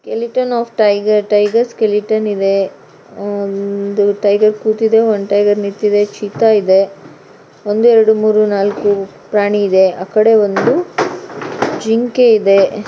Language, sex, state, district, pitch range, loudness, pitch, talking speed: Kannada, female, Karnataka, Shimoga, 200-220 Hz, -13 LUFS, 210 Hz, 110 wpm